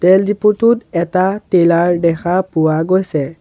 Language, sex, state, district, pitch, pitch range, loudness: Assamese, male, Assam, Sonitpur, 180 Hz, 170-190 Hz, -14 LUFS